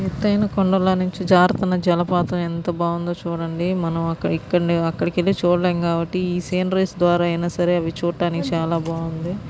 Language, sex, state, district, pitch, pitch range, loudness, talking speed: Telugu, male, Andhra Pradesh, Guntur, 175 Hz, 170-185 Hz, -21 LUFS, 125 wpm